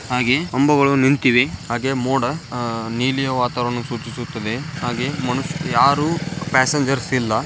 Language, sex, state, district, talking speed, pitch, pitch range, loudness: Kannada, male, Karnataka, Dharwad, 115 wpm, 130 Hz, 120-140 Hz, -19 LUFS